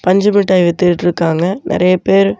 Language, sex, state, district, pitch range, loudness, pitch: Tamil, male, Tamil Nadu, Namakkal, 170-185 Hz, -13 LUFS, 180 Hz